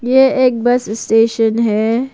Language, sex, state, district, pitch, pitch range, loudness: Hindi, female, Arunachal Pradesh, Papum Pare, 230 Hz, 225-250 Hz, -14 LUFS